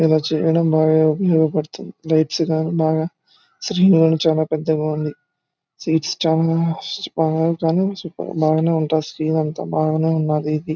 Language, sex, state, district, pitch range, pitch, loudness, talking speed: Telugu, male, Andhra Pradesh, Anantapur, 155-165 Hz, 160 Hz, -19 LUFS, 80 wpm